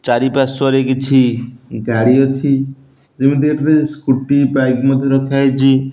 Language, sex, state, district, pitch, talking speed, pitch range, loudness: Odia, male, Odisha, Nuapada, 135 Hz, 80 wpm, 130-140 Hz, -14 LUFS